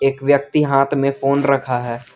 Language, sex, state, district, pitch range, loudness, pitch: Hindi, male, Jharkhand, Garhwa, 135-140 Hz, -17 LUFS, 135 Hz